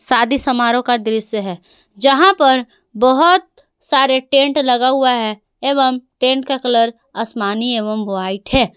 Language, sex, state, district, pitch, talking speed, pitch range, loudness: Hindi, female, Jharkhand, Garhwa, 250 Hz, 145 wpm, 220-270 Hz, -15 LUFS